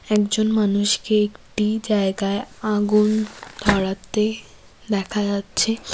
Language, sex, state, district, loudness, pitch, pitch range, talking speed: Bengali, female, West Bengal, Cooch Behar, -21 LUFS, 210 Hz, 205-215 Hz, 80 wpm